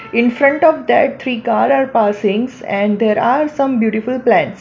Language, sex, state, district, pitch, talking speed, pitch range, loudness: English, female, Gujarat, Valsad, 240 Hz, 180 wpm, 220-275 Hz, -14 LUFS